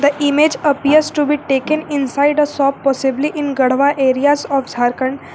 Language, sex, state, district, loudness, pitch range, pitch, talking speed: English, female, Jharkhand, Garhwa, -15 LUFS, 270-295 Hz, 285 Hz, 170 wpm